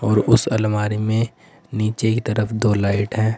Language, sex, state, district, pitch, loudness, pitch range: Hindi, male, Uttar Pradesh, Saharanpur, 110 Hz, -20 LUFS, 105-110 Hz